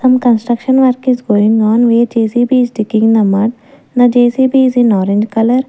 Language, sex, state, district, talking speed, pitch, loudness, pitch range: English, female, Maharashtra, Gondia, 190 wpm, 240 Hz, -11 LUFS, 220-255 Hz